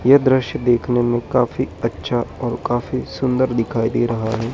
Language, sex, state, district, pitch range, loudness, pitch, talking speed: Hindi, male, Madhya Pradesh, Dhar, 115-130 Hz, -19 LUFS, 120 Hz, 170 wpm